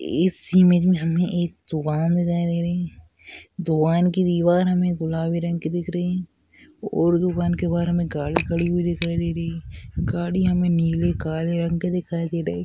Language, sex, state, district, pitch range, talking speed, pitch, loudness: Hindi, male, Maharashtra, Aurangabad, 165-175 Hz, 195 wpm, 170 Hz, -22 LUFS